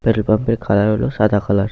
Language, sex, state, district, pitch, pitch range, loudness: Bengali, male, West Bengal, Paschim Medinipur, 105 Hz, 100-110 Hz, -17 LUFS